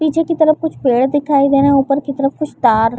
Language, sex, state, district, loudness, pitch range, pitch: Hindi, female, Chhattisgarh, Bilaspur, -14 LUFS, 270-305 Hz, 280 Hz